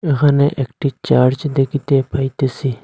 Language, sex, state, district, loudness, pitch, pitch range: Bengali, male, Assam, Hailakandi, -17 LUFS, 135 Hz, 130-145 Hz